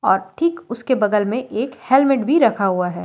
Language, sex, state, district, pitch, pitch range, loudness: Hindi, female, Delhi, New Delhi, 235 Hz, 205-265 Hz, -18 LUFS